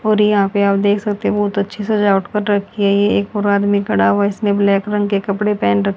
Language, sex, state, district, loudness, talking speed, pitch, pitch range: Hindi, female, Haryana, Charkhi Dadri, -16 LUFS, 250 wpm, 200 Hz, 200-210 Hz